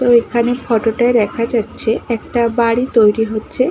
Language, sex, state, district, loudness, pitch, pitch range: Bengali, female, West Bengal, Malda, -15 LUFS, 235 Hz, 225-240 Hz